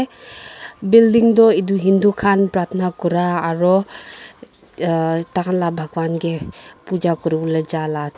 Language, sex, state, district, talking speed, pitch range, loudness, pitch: Nagamese, female, Nagaland, Dimapur, 130 wpm, 165-195 Hz, -17 LUFS, 175 Hz